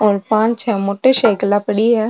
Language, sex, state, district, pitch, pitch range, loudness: Marwari, female, Rajasthan, Nagaur, 215 Hz, 205-230 Hz, -15 LUFS